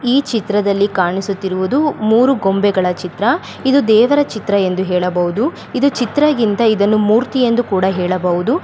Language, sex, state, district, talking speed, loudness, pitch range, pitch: Kannada, female, Karnataka, Bellary, 125 wpm, -15 LUFS, 190-255 Hz, 215 Hz